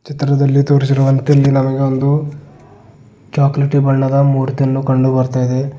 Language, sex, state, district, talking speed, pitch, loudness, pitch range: Kannada, male, Karnataka, Bidar, 115 wpm, 135 Hz, -14 LUFS, 130-140 Hz